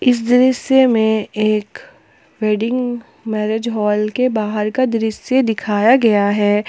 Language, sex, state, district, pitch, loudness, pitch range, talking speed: Hindi, female, Jharkhand, Palamu, 220 Hz, -16 LUFS, 210-250 Hz, 125 wpm